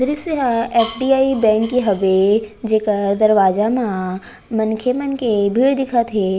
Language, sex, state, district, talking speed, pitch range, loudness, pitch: Chhattisgarhi, female, Chhattisgarh, Raigarh, 150 wpm, 205-250 Hz, -17 LUFS, 225 Hz